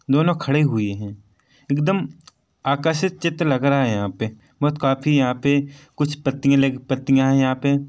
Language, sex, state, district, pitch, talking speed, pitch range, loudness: Hindi, male, Chhattisgarh, Korba, 140 Hz, 180 wpm, 130-145 Hz, -20 LUFS